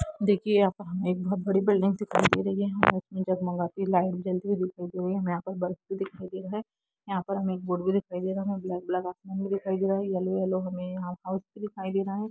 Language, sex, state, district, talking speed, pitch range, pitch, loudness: Hindi, female, Jharkhand, Jamtara, 280 wpm, 185-195 Hz, 190 Hz, -29 LUFS